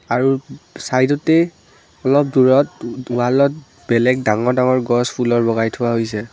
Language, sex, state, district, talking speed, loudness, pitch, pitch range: Assamese, female, Assam, Kamrup Metropolitan, 140 wpm, -17 LUFS, 125 Hz, 120-135 Hz